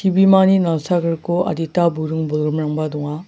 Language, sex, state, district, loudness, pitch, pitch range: Garo, male, Meghalaya, South Garo Hills, -18 LUFS, 165 Hz, 155-180 Hz